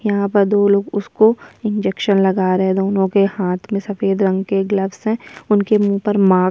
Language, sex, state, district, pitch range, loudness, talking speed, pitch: Hindi, female, Bihar, Kishanganj, 195-205 Hz, -17 LUFS, 210 wpm, 200 Hz